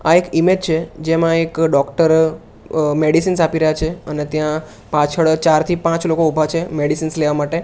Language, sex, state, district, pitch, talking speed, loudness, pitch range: Gujarati, male, Gujarat, Gandhinagar, 160 Hz, 190 wpm, -16 LUFS, 155-165 Hz